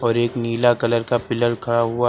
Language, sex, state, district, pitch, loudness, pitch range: Hindi, male, Uttar Pradesh, Lucknow, 120 Hz, -20 LUFS, 115-120 Hz